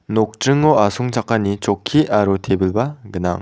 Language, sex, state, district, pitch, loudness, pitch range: Garo, male, Meghalaya, South Garo Hills, 110 Hz, -17 LUFS, 100-125 Hz